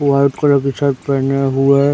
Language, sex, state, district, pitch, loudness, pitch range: Hindi, male, Chhattisgarh, Raigarh, 140 Hz, -15 LUFS, 135-140 Hz